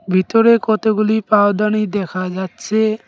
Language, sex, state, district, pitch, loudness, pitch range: Bengali, male, West Bengal, Cooch Behar, 215 Hz, -16 LUFS, 195-220 Hz